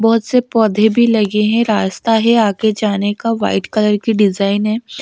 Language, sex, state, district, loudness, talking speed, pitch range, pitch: Hindi, female, Chhattisgarh, Raipur, -14 LUFS, 190 wpm, 205-225 Hz, 215 Hz